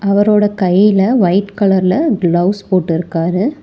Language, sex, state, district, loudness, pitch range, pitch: Tamil, male, Tamil Nadu, Chennai, -13 LUFS, 180-205 Hz, 195 Hz